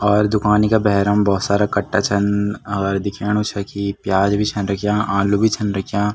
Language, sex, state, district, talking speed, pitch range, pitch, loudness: Garhwali, male, Uttarakhand, Tehri Garhwal, 195 wpm, 100-105 Hz, 100 Hz, -18 LUFS